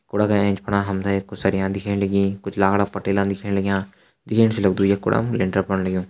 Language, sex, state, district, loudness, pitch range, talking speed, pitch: Hindi, male, Uttarakhand, Uttarkashi, -21 LUFS, 95-100 Hz, 235 wpm, 100 Hz